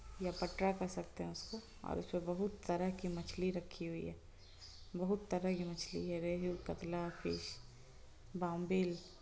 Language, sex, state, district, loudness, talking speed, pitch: Hindi, female, Bihar, Muzaffarpur, -42 LUFS, 155 wpm, 175 Hz